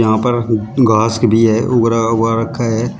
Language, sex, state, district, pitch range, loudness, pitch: Hindi, male, Uttar Pradesh, Shamli, 110-120 Hz, -14 LUFS, 115 Hz